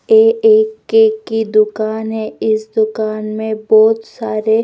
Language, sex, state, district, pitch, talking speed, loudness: Hindi, female, Bihar, West Champaran, 220 Hz, 140 wpm, -14 LUFS